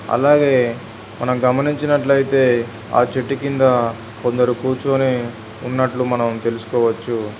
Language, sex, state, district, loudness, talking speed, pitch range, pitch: Telugu, male, Telangana, Hyderabad, -18 LUFS, 90 wpm, 115-135 Hz, 125 Hz